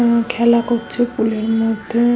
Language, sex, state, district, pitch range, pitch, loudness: Bengali, female, West Bengal, Malda, 225-240 Hz, 235 Hz, -17 LUFS